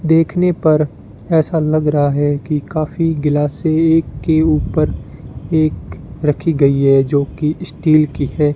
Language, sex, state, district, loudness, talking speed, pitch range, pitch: Hindi, male, Rajasthan, Bikaner, -15 LUFS, 145 wpm, 145-160 Hz, 150 Hz